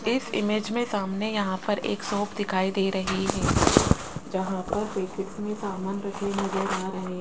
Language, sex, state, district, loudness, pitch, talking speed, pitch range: Hindi, male, Rajasthan, Jaipur, -27 LUFS, 200 Hz, 175 wpm, 190-210 Hz